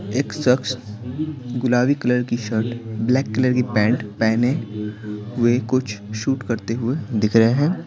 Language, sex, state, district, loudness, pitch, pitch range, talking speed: Hindi, male, Bihar, Patna, -21 LUFS, 120 Hz, 110-130 Hz, 145 wpm